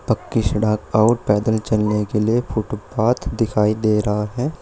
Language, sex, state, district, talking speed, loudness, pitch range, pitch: Hindi, male, Uttar Pradesh, Shamli, 155 wpm, -19 LUFS, 105-115 Hz, 110 Hz